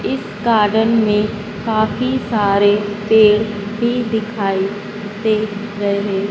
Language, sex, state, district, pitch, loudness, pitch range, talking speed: Hindi, female, Madhya Pradesh, Dhar, 210 Hz, -17 LUFS, 205-220 Hz, 95 wpm